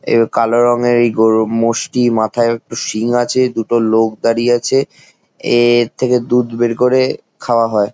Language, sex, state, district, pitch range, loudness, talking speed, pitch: Bengali, male, West Bengal, Jalpaiguri, 115-120 Hz, -14 LUFS, 165 wpm, 120 Hz